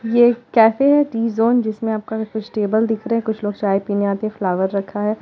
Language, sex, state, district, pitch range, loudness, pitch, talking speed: Hindi, female, Bihar, Muzaffarpur, 205-230 Hz, -18 LUFS, 220 Hz, 220 wpm